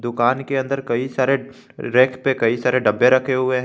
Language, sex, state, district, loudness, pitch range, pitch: Hindi, male, Jharkhand, Garhwa, -19 LUFS, 120-135 Hz, 130 Hz